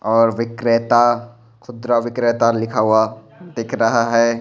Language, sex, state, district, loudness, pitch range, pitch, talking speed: Hindi, male, Bihar, Patna, -17 LUFS, 115-120 Hz, 115 Hz, 120 wpm